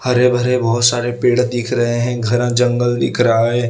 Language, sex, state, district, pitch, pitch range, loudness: Hindi, male, Gujarat, Valsad, 120 Hz, 120-125 Hz, -15 LUFS